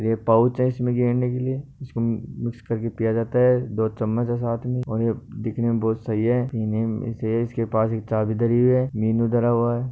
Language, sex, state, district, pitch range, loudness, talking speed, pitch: Hindi, male, Rajasthan, Nagaur, 115-125 Hz, -23 LUFS, 210 wpm, 115 Hz